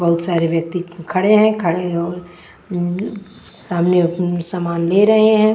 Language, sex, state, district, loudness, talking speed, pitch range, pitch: Hindi, female, Bihar, West Champaran, -17 LUFS, 140 wpm, 170-205 Hz, 180 Hz